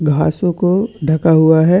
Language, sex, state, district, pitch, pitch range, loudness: Hindi, male, Chhattisgarh, Bastar, 160 Hz, 155-180 Hz, -14 LUFS